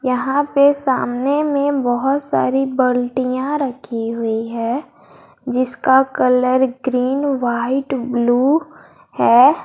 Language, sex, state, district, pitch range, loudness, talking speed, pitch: Hindi, female, Jharkhand, Garhwa, 245-275 Hz, -17 LUFS, 100 wpm, 260 Hz